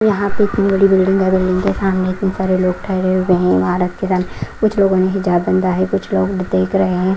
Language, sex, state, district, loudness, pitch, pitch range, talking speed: Hindi, female, Haryana, Rohtak, -16 LUFS, 190 Hz, 185-195 Hz, 240 wpm